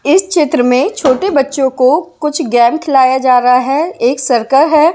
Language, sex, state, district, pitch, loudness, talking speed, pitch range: Hindi, female, Maharashtra, Mumbai Suburban, 275 Hz, -11 LUFS, 180 wpm, 255-310 Hz